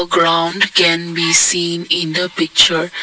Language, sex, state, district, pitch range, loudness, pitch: English, male, Assam, Kamrup Metropolitan, 165-175 Hz, -13 LUFS, 170 Hz